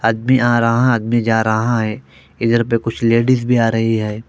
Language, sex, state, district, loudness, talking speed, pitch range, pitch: Hindi, male, Haryana, Jhajjar, -16 LUFS, 210 wpm, 115-120 Hz, 115 Hz